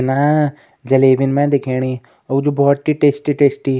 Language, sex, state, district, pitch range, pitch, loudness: Garhwali, male, Uttarakhand, Uttarkashi, 135-145 Hz, 140 Hz, -15 LUFS